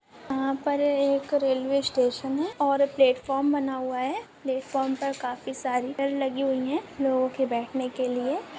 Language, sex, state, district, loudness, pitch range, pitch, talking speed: Hindi, female, Goa, North and South Goa, -27 LUFS, 260-280 Hz, 270 Hz, 170 wpm